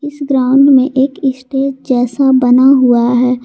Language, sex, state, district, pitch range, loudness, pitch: Hindi, female, Jharkhand, Garhwa, 250-275 Hz, -11 LUFS, 265 Hz